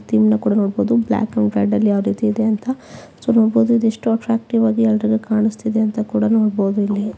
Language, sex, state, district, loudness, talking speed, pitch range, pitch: Kannada, female, Karnataka, Shimoga, -17 LUFS, 165 wpm, 210-225 Hz, 220 Hz